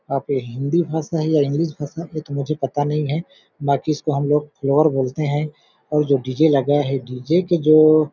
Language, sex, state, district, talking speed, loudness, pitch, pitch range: Hindi, male, Chhattisgarh, Balrampur, 235 wpm, -20 LUFS, 150 Hz, 140-155 Hz